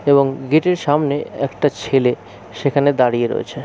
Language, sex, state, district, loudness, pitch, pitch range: Bengali, male, West Bengal, Jalpaiguri, -17 LUFS, 140 Hz, 125-145 Hz